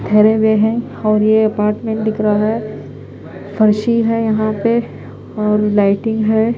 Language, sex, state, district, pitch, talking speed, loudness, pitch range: Hindi, female, Punjab, Fazilka, 215 Hz, 145 wpm, -15 LUFS, 210-220 Hz